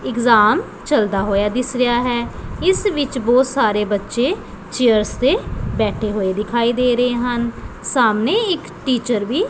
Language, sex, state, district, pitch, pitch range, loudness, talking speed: Punjabi, female, Punjab, Pathankot, 240 Hz, 215-255 Hz, -18 LUFS, 150 wpm